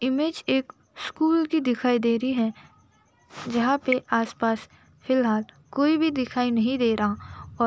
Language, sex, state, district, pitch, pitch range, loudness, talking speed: Hindi, female, Uttar Pradesh, Jalaun, 250 Hz, 230-275 Hz, -24 LUFS, 155 wpm